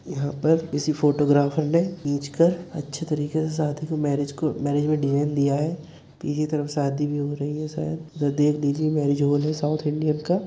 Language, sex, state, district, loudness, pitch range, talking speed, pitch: Hindi, male, Uttar Pradesh, Muzaffarnagar, -24 LUFS, 145-155 Hz, 200 wpm, 150 Hz